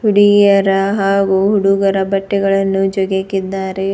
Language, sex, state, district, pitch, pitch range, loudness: Kannada, female, Karnataka, Bidar, 195 Hz, 195-200 Hz, -14 LUFS